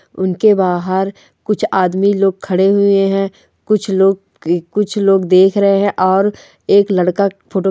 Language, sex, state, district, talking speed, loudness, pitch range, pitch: Hindi, female, Chhattisgarh, Rajnandgaon, 140 wpm, -14 LUFS, 185-200 Hz, 195 Hz